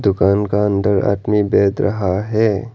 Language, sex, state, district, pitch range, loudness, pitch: Hindi, male, Arunachal Pradesh, Lower Dibang Valley, 100-105 Hz, -16 LUFS, 100 Hz